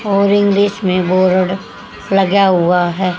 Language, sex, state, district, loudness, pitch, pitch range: Hindi, female, Haryana, Charkhi Dadri, -13 LUFS, 190 Hz, 185-200 Hz